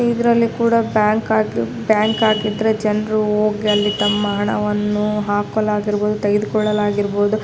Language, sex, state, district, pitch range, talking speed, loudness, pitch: Kannada, female, Karnataka, Raichur, 210-215 Hz, 105 wpm, -18 LUFS, 210 Hz